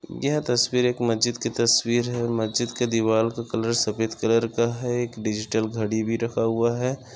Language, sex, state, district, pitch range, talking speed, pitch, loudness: Hindi, male, Maharashtra, Sindhudurg, 115-120 Hz, 190 wpm, 115 Hz, -24 LUFS